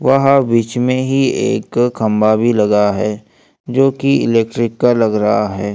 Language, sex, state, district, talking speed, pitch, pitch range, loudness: Hindi, male, Maharashtra, Gondia, 165 wpm, 115 Hz, 105-130 Hz, -14 LUFS